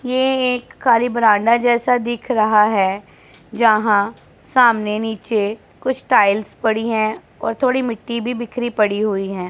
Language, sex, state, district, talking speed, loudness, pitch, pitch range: Hindi, female, Punjab, Pathankot, 145 wpm, -17 LUFS, 225 Hz, 210-245 Hz